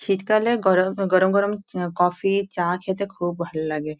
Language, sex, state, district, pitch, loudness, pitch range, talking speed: Bengali, female, West Bengal, Dakshin Dinajpur, 190 Hz, -22 LUFS, 175-200 Hz, 165 wpm